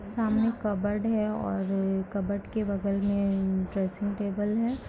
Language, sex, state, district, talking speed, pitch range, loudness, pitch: Hindi, female, Bihar, Kishanganj, 135 wpm, 195-215 Hz, -29 LUFS, 205 Hz